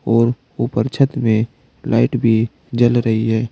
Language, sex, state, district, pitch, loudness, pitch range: Hindi, male, Uttar Pradesh, Saharanpur, 120 Hz, -17 LUFS, 115-125 Hz